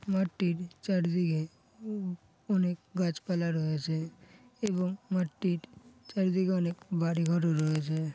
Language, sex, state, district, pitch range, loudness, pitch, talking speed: Bengali, male, West Bengal, Paschim Medinipur, 165-185 Hz, -31 LUFS, 175 Hz, 90 wpm